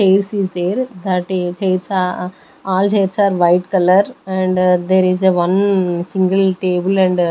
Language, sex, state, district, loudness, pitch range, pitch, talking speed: English, female, Maharashtra, Gondia, -16 LUFS, 180-195 Hz, 185 Hz, 170 wpm